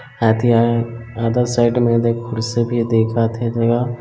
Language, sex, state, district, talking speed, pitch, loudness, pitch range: Hindi, male, Chhattisgarh, Bilaspur, 180 wpm, 115 Hz, -17 LUFS, 115-120 Hz